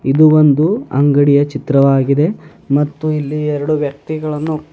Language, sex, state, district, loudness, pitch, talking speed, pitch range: Kannada, male, Karnataka, Bidar, -14 LUFS, 150 Hz, 100 wpm, 140-155 Hz